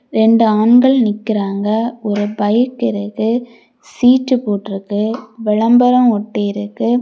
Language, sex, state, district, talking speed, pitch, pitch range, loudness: Tamil, female, Tamil Nadu, Kanyakumari, 85 wpm, 220 Hz, 210-240 Hz, -15 LUFS